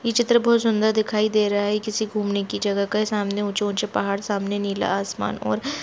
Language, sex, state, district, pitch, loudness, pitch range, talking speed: Hindi, female, Jharkhand, Jamtara, 205 Hz, -22 LUFS, 200-215 Hz, 235 wpm